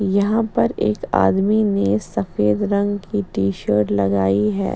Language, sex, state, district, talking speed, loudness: Hindi, female, Bihar, Patna, 165 wpm, -19 LUFS